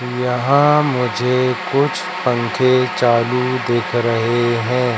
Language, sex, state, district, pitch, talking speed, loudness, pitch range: Hindi, male, Madhya Pradesh, Katni, 125 Hz, 95 wpm, -16 LUFS, 120-130 Hz